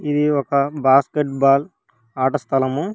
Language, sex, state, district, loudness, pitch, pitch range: Telugu, female, Telangana, Hyderabad, -18 LUFS, 140 Hz, 135-150 Hz